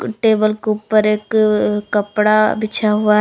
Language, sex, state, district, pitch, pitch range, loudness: Hindi, female, Jharkhand, Palamu, 215 Hz, 210-215 Hz, -16 LUFS